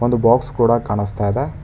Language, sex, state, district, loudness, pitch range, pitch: Kannada, male, Karnataka, Bangalore, -17 LUFS, 105-120 Hz, 115 Hz